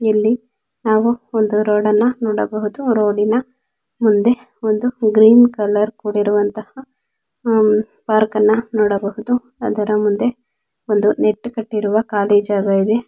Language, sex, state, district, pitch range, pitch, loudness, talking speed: Kannada, female, Karnataka, Dakshina Kannada, 210-235 Hz, 215 Hz, -16 LUFS, 95 wpm